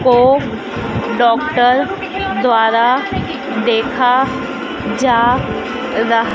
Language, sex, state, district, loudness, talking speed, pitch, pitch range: Hindi, female, Madhya Pradesh, Dhar, -15 LUFS, 55 wpm, 250 Hz, 235-270 Hz